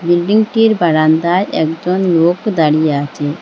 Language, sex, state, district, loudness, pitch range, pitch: Bengali, female, Assam, Hailakandi, -13 LUFS, 155-190 Hz, 170 Hz